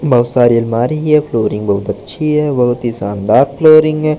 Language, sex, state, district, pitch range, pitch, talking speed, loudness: Hindi, male, Madhya Pradesh, Katni, 115-150 Hz, 125 Hz, 200 wpm, -12 LUFS